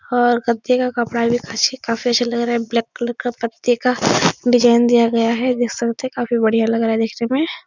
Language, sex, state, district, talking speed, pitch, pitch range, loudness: Hindi, female, Uttar Pradesh, Etah, 195 wpm, 235 Hz, 230-245 Hz, -18 LUFS